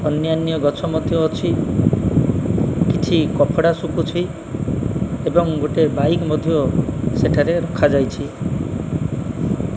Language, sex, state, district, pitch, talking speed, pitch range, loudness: Odia, male, Odisha, Malkangiri, 160 Hz, 85 wpm, 145-165 Hz, -19 LUFS